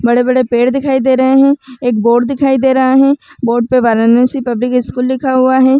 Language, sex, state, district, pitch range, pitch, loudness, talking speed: Hindi, female, Uttar Pradesh, Varanasi, 245-265 Hz, 255 Hz, -11 LUFS, 205 wpm